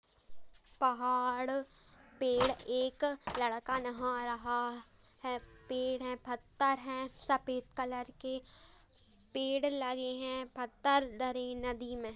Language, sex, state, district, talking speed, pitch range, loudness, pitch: Hindi, male, Uttarakhand, Tehri Garhwal, 100 wpm, 245-260 Hz, -36 LUFS, 255 Hz